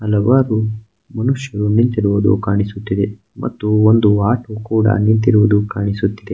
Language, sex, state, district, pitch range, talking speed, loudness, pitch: Kannada, male, Karnataka, Mysore, 105-110 Hz, 105 wpm, -16 LUFS, 105 Hz